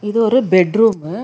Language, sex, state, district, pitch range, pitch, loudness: Tamil, female, Karnataka, Bangalore, 185-225 Hz, 210 Hz, -14 LUFS